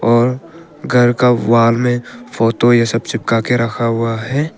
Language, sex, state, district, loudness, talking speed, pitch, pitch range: Hindi, male, Arunachal Pradesh, Papum Pare, -14 LUFS, 170 wpm, 120 Hz, 115-125 Hz